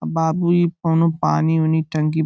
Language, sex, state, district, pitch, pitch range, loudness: Bhojpuri, male, Uttar Pradesh, Gorakhpur, 160 Hz, 160-165 Hz, -18 LUFS